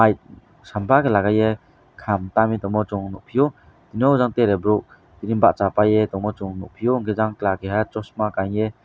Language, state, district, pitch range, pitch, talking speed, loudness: Kokborok, Tripura, West Tripura, 100-110 Hz, 105 Hz, 135 wpm, -21 LUFS